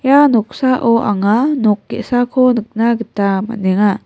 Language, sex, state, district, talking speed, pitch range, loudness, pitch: Garo, female, Meghalaya, West Garo Hills, 120 wpm, 205-255 Hz, -14 LUFS, 230 Hz